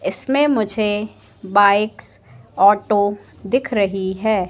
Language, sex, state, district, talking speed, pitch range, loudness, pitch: Hindi, female, Madhya Pradesh, Katni, 95 wpm, 195-215 Hz, -18 LUFS, 205 Hz